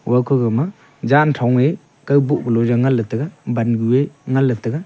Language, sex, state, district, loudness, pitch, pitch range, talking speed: Wancho, male, Arunachal Pradesh, Longding, -17 LUFS, 130 Hz, 120-140 Hz, 160 wpm